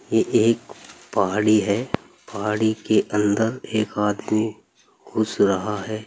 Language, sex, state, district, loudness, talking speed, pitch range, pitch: Hindi, male, Uttar Pradesh, Saharanpur, -22 LUFS, 120 wpm, 105-110 Hz, 105 Hz